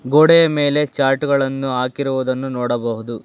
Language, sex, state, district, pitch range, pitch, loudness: Kannada, male, Karnataka, Bangalore, 125-145 Hz, 135 Hz, -17 LUFS